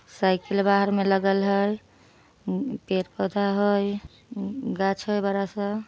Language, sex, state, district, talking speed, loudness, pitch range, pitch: Magahi, female, Bihar, Samastipur, 110 wpm, -25 LUFS, 195-205 Hz, 200 Hz